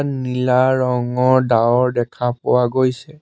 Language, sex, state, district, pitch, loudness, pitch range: Assamese, male, Assam, Sonitpur, 125 Hz, -17 LUFS, 125-130 Hz